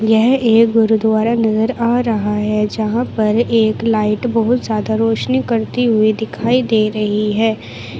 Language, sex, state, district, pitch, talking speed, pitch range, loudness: Hindi, female, Uttar Pradesh, Shamli, 220 Hz, 150 wpm, 215-230 Hz, -15 LUFS